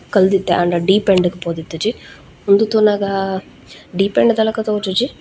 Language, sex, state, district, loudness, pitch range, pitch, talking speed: Tulu, female, Karnataka, Dakshina Kannada, -16 LUFS, 180-210 Hz, 195 Hz, 150 wpm